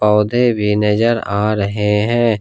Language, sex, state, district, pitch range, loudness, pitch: Hindi, male, Jharkhand, Ranchi, 105-115 Hz, -15 LUFS, 105 Hz